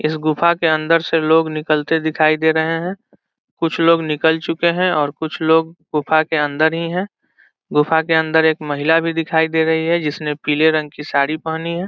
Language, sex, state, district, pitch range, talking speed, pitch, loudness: Hindi, male, Bihar, Saran, 155-165 Hz, 205 wpm, 160 Hz, -17 LUFS